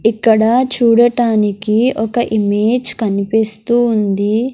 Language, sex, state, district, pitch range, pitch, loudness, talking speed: Telugu, female, Andhra Pradesh, Sri Satya Sai, 215-240 Hz, 220 Hz, -14 LUFS, 80 wpm